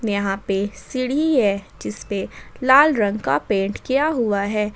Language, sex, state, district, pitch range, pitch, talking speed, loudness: Hindi, female, Jharkhand, Ranchi, 200-255 Hz, 210 Hz, 165 wpm, -20 LUFS